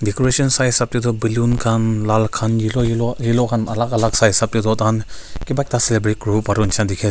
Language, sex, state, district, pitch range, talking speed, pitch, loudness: Nagamese, male, Nagaland, Kohima, 110-120 Hz, 260 wpm, 115 Hz, -17 LUFS